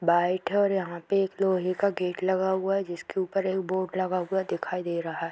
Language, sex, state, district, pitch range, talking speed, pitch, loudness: Hindi, female, Bihar, East Champaran, 180-190 Hz, 260 wpm, 185 Hz, -27 LUFS